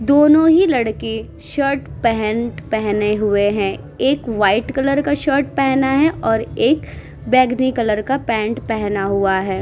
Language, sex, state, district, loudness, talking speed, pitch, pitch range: Hindi, female, Uttar Pradesh, Muzaffarnagar, -17 LUFS, 150 wpm, 230 Hz, 210-275 Hz